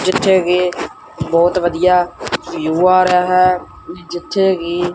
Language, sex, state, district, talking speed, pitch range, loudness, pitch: Punjabi, male, Punjab, Kapurthala, 120 wpm, 175-185 Hz, -14 LUFS, 180 Hz